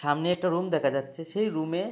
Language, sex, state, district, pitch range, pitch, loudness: Bengali, male, West Bengal, Jalpaiguri, 145-180 Hz, 165 Hz, -28 LUFS